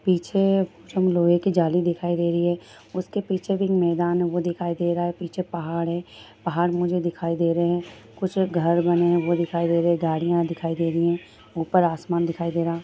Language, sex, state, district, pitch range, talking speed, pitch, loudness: Hindi, female, Bihar, Jahanabad, 170-175 Hz, 220 wpm, 175 Hz, -23 LUFS